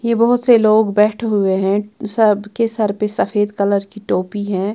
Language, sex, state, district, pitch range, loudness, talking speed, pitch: Hindi, female, Bihar, Patna, 200-220 Hz, -16 LUFS, 190 wpm, 210 Hz